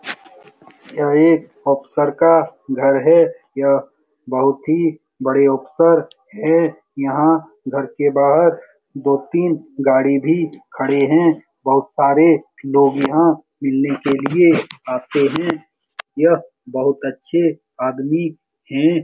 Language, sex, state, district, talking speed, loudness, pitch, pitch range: Hindi, male, Bihar, Saran, 115 wpm, -17 LUFS, 145 Hz, 140-165 Hz